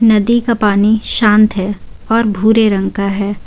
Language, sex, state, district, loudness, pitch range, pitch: Hindi, female, Jharkhand, Garhwa, -13 LUFS, 200-225 Hz, 210 Hz